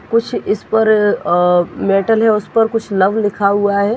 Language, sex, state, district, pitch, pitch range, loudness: Hindi, female, Chhattisgarh, Raigarh, 205 Hz, 200-220 Hz, -14 LUFS